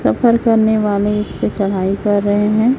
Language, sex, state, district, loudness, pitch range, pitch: Hindi, female, Chhattisgarh, Raipur, -15 LUFS, 205-220 Hz, 210 Hz